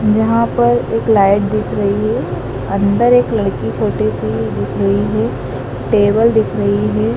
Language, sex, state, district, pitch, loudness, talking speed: Hindi, male, Madhya Pradesh, Dhar, 195 Hz, -15 LUFS, 160 wpm